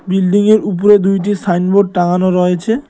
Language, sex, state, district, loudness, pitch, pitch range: Bengali, male, West Bengal, Cooch Behar, -12 LUFS, 195 Hz, 180-205 Hz